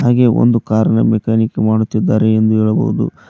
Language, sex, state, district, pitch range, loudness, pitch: Kannada, male, Karnataka, Koppal, 110-115 Hz, -14 LUFS, 110 Hz